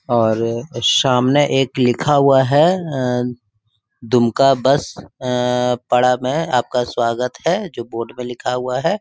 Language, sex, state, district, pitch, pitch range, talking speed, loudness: Hindi, male, Jharkhand, Sahebganj, 125 Hz, 120-135 Hz, 140 wpm, -17 LUFS